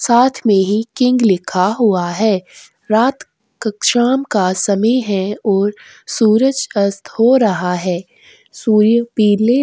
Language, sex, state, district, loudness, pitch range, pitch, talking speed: Hindi, female, Goa, North and South Goa, -15 LUFS, 195-240 Hz, 215 Hz, 130 wpm